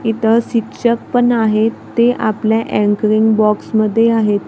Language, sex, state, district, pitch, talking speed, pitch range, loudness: Marathi, female, Maharashtra, Gondia, 220 Hz, 120 wpm, 215-230 Hz, -14 LUFS